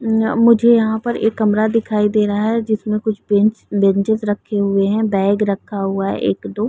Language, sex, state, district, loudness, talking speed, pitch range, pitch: Hindi, female, Bihar, Muzaffarpur, -17 LUFS, 195 wpm, 200-220 Hz, 210 Hz